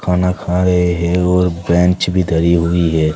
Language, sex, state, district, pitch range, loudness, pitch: Hindi, male, Uttar Pradesh, Saharanpur, 85-90 Hz, -14 LUFS, 90 Hz